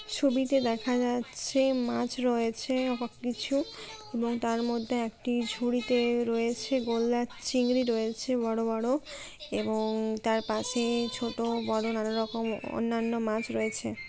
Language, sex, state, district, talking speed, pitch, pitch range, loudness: Bengali, female, West Bengal, Kolkata, 120 wpm, 235 Hz, 225-250 Hz, -30 LUFS